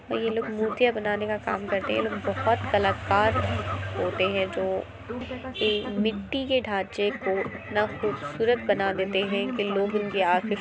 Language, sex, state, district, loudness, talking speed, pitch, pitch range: Hindi, female, Bihar, Muzaffarpur, -26 LUFS, 160 wpm, 205 Hz, 190-220 Hz